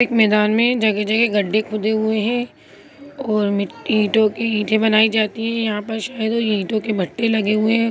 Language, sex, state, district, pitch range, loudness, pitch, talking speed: Hindi, female, Bihar, Lakhisarai, 210-230 Hz, -18 LUFS, 220 Hz, 195 wpm